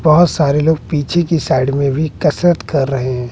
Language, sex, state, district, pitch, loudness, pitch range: Hindi, male, Bihar, West Champaran, 150 Hz, -15 LUFS, 135-165 Hz